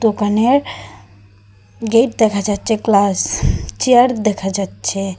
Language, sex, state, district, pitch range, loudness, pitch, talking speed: Bengali, female, Assam, Hailakandi, 185-225 Hz, -16 LUFS, 205 Hz, 95 wpm